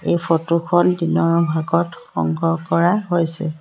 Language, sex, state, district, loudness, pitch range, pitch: Assamese, female, Assam, Sonitpur, -19 LUFS, 160-170 Hz, 165 Hz